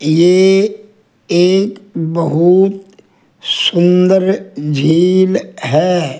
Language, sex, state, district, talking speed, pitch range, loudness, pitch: Hindi, male, Rajasthan, Jaipur, 60 wpm, 170-195 Hz, -12 LUFS, 185 Hz